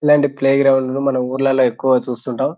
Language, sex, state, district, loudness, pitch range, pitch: Telugu, male, Telangana, Nalgonda, -16 LUFS, 130-135 Hz, 135 Hz